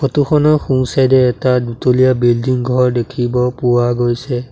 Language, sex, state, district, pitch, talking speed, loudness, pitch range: Assamese, male, Assam, Sonitpur, 125 Hz, 160 wpm, -14 LUFS, 120-130 Hz